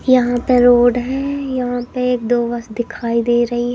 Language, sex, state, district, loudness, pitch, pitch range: Hindi, female, Madhya Pradesh, Katni, -16 LUFS, 245 Hz, 240-250 Hz